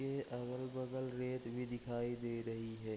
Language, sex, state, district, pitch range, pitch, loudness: Hindi, male, Bihar, Bhagalpur, 115-130 Hz, 120 Hz, -43 LUFS